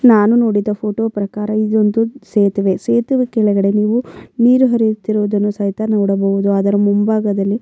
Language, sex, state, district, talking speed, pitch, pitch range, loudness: Kannada, female, Karnataka, Mysore, 125 wpm, 210 Hz, 205-225 Hz, -15 LUFS